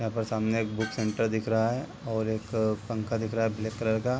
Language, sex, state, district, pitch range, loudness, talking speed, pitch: Hindi, male, Bihar, East Champaran, 110-115 Hz, -29 LUFS, 255 wpm, 110 Hz